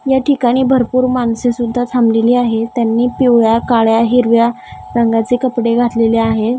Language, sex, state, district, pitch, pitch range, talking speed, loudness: Marathi, female, Maharashtra, Gondia, 240 Hz, 230-250 Hz, 135 wpm, -13 LUFS